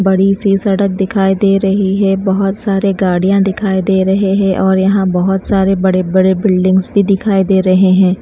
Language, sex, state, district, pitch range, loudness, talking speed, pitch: Hindi, female, Himachal Pradesh, Shimla, 190-195 Hz, -12 LUFS, 180 wpm, 195 Hz